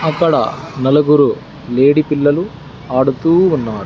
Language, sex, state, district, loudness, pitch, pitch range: Telugu, male, Andhra Pradesh, Sri Satya Sai, -14 LUFS, 145 Hz, 135-160 Hz